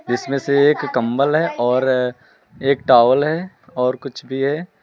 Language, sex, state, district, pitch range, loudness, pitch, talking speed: Hindi, male, Uttar Pradesh, Lucknow, 125-150 Hz, -18 LUFS, 140 Hz, 160 wpm